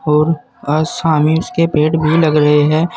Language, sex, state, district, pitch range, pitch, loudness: Hindi, male, Uttar Pradesh, Saharanpur, 150-165 Hz, 155 Hz, -14 LUFS